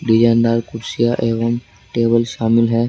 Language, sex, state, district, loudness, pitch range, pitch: Hindi, male, Rajasthan, Jaipur, -17 LUFS, 115-120 Hz, 115 Hz